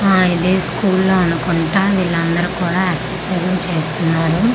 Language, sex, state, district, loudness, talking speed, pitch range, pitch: Telugu, female, Andhra Pradesh, Manyam, -16 LUFS, 130 wpm, 170-185 Hz, 180 Hz